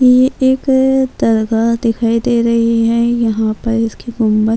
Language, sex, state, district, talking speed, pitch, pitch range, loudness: Urdu, female, Bihar, Kishanganj, 155 wpm, 230 Hz, 225-250 Hz, -14 LUFS